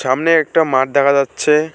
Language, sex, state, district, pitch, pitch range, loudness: Bengali, male, West Bengal, Alipurduar, 145 Hz, 135-160 Hz, -14 LUFS